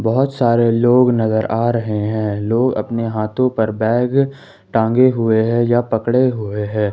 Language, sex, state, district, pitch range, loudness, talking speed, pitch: Hindi, male, Jharkhand, Ranchi, 110-120 Hz, -16 LUFS, 165 wpm, 115 Hz